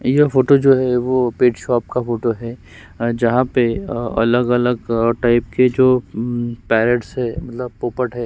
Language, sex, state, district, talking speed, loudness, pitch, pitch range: Hindi, female, Chhattisgarh, Sukma, 180 wpm, -17 LUFS, 120 Hz, 115-125 Hz